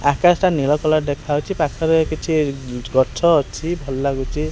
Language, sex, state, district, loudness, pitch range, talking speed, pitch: Odia, male, Odisha, Khordha, -19 LUFS, 140-160 Hz, 160 wpm, 150 Hz